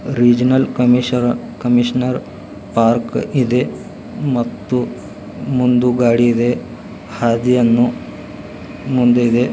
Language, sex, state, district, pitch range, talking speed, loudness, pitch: Kannada, male, Karnataka, Belgaum, 120-125 Hz, 70 wpm, -16 LUFS, 125 Hz